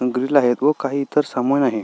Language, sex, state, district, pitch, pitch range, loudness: Marathi, male, Maharashtra, Sindhudurg, 135 Hz, 125-140 Hz, -19 LUFS